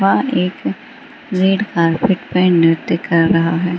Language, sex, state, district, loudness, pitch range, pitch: Hindi, female, Bihar, Gaya, -15 LUFS, 170-195 Hz, 180 Hz